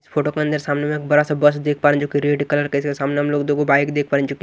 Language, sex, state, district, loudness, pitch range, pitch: Hindi, male, Maharashtra, Washim, -19 LUFS, 145-150 Hz, 145 Hz